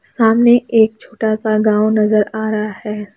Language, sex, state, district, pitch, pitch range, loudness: Hindi, female, Bihar, Lakhisarai, 215 Hz, 215-225 Hz, -15 LUFS